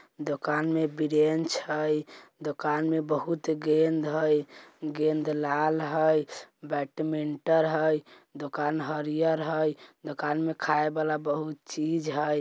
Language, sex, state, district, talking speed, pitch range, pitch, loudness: Bajjika, male, Bihar, Vaishali, 115 wpm, 150-155 Hz, 155 Hz, -28 LUFS